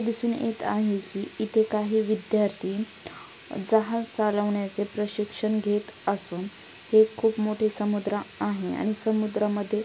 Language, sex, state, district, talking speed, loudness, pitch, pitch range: Marathi, female, Maharashtra, Pune, 120 wpm, -27 LUFS, 215 Hz, 205-220 Hz